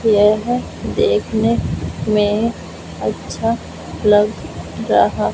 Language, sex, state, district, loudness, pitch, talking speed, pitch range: Hindi, female, Punjab, Fazilka, -17 LUFS, 220 Hz, 65 wpm, 210-230 Hz